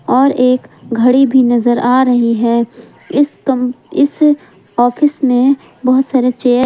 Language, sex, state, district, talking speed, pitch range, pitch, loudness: Hindi, female, Jharkhand, Palamu, 145 wpm, 245-270 Hz, 255 Hz, -13 LUFS